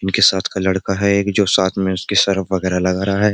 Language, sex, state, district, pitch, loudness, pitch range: Hindi, male, Uttar Pradesh, Jyotiba Phule Nagar, 95 Hz, -17 LUFS, 95-100 Hz